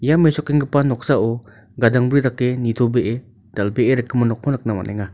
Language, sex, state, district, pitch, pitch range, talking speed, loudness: Garo, male, Meghalaya, North Garo Hills, 120 Hz, 115-135 Hz, 130 wpm, -19 LUFS